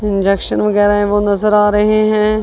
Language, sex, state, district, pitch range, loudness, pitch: Hindi, female, Punjab, Kapurthala, 205-210 Hz, -13 LUFS, 210 Hz